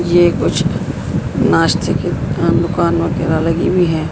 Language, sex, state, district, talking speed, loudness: Hindi, female, Madhya Pradesh, Dhar, 130 wpm, -15 LUFS